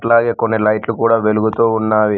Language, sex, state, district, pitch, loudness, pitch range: Telugu, male, Telangana, Mahabubabad, 110 Hz, -15 LUFS, 110-115 Hz